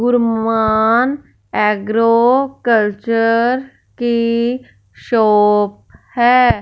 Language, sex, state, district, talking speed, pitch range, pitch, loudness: Hindi, female, Punjab, Fazilka, 55 wpm, 215-245 Hz, 230 Hz, -15 LUFS